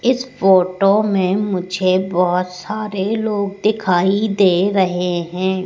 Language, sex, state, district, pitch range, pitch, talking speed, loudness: Hindi, female, Madhya Pradesh, Katni, 185-205 Hz, 190 Hz, 115 wpm, -17 LUFS